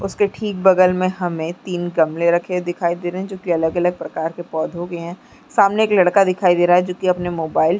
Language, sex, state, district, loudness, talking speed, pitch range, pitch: Hindi, female, Chhattisgarh, Sarguja, -18 LUFS, 255 wpm, 170-185 Hz, 175 Hz